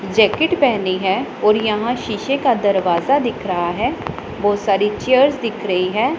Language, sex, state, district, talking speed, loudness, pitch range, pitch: Hindi, female, Punjab, Pathankot, 165 wpm, -18 LUFS, 195-255 Hz, 215 Hz